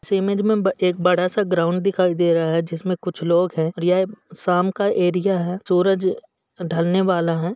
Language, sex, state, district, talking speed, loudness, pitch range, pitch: Hindi, male, Uttar Pradesh, Jalaun, 200 wpm, -20 LUFS, 170-190 Hz, 180 Hz